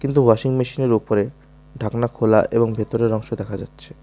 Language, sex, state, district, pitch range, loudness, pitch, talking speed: Bengali, male, West Bengal, Alipurduar, 110-140 Hz, -20 LUFS, 115 Hz, 165 wpm